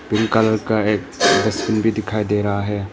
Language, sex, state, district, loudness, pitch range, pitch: Hindi, male, Arunachal Pradesh, Papum Pare, -18 LUFS, 105-110 Hz, 105 Hz